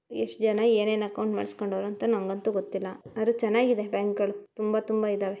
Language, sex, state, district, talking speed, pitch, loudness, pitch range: Kannada, female, Karnataka, Mysore, 165 wpm, 205 Hz, -28 LUFS, 195-220 Hz